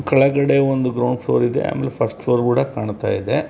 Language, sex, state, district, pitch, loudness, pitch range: Kannada, male, Karnataka, Bellary, 125 Hz, -19 LUFS, 110-135 Hz